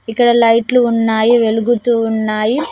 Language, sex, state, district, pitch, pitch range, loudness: Telugu, female, Telangana, Mahabubabad, 230 Hz, 225-240 Hz, -13 LUFS